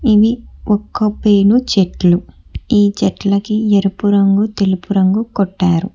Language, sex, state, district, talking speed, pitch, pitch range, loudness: Telugu, female, Telangana, Hyderabad, 110 wpm, 205 Hz, 195-215 Hz, -14 LUFS